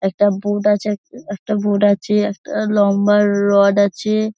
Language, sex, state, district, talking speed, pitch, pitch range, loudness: Bengali, female, West Bengal, Dakshin Dinajpur, 150 wpm, 205 Hz, 200-210 Hz, -16 LUFS